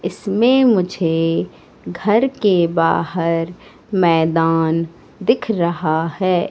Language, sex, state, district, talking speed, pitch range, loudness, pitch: Hindi, female, Madhya Pradesh, Katni, 85 wpm, 165-200 Hz, -17 LUFS, 170 Hz